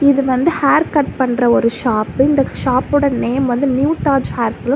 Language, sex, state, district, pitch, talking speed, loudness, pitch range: Tamil, female, Tamil Nadu, Kanyakumari, 270 Hz, 200 wpm, -15 LUFS, 255-285 Hz